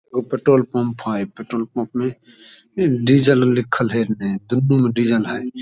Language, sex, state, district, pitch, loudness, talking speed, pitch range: Maithili, male, Bihar, Samastipur, 120 Hz, -19 LUFS, 150 wpm, 115-125 Hz